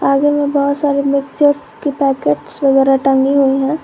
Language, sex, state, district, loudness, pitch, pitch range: Hindi, female, Jharkhand, Garhwa, -14 LUFS, 280 Hz, 270-285 Hz